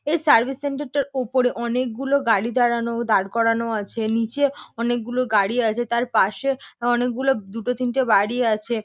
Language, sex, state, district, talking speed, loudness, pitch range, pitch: Bengali, female, West Bengal, North 24 Parganas, 150 wpm, -22 LUFS, 230-265 Hz, 240 Hz